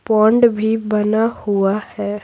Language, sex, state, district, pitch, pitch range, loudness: Hindi, female, Bihar, Patna, 215 Hz, 205-220 Hz, -17 LUFS